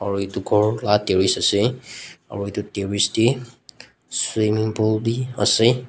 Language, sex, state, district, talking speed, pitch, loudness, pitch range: Nagamese, male, Nagaland, Dimapur, 145 wpm, 110 Hz, -20 LUFS, 100-115 Hz